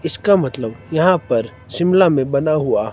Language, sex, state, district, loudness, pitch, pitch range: Hindi, male, Himachal Pradesh, Shimla, -17 LUFS, 150 Hz, 120-175 Hz